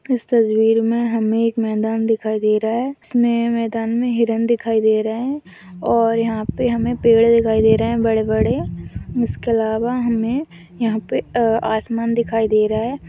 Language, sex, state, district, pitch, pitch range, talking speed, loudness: Hindi, female, Bihar, Madhepura, 230 Hz, 220-235 Hz, 180 wpm, -18 LUFS